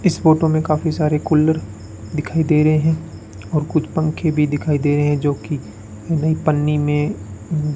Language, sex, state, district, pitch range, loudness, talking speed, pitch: Hindi, male, Rajasthan, Bikaner, 145-155 Hz, -18 LUFS, 180 wpm, 150 Hz